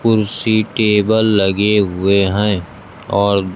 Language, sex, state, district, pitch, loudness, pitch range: Hindi, male, Bihar, Kaimur, 100 Hz, -15 LUFS, 100-110 Hz